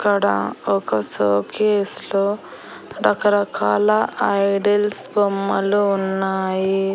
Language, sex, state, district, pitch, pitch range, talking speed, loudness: Telugu, female, Andhra Pradesh, Annamaya, 195 Hz, 190-205 Hz, 70 wpm, -19 LUFS